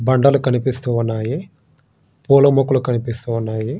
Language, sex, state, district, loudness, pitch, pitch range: Telugu, male, Andhra Pradesh, Guntur, -17 LUFS, 125 Hz, 115-140 Hz